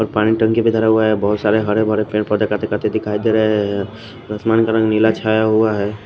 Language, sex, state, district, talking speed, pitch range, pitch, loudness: Hindi, male, Maharashtra, Washim, 255 wpm, 105-110 Hz, 110 Hz, -16 LUFS